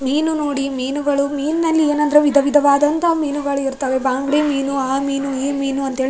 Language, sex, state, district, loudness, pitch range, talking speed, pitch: Kannada, female, Karnataka, Raichur, -18 LUFS, 275-295 Hz, 165 wpm, 280 Hz